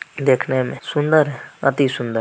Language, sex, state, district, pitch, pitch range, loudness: Hindi, male, Bihar, Muzaffarpur, 135 Hz, 130-145 Hz, -19 LUFS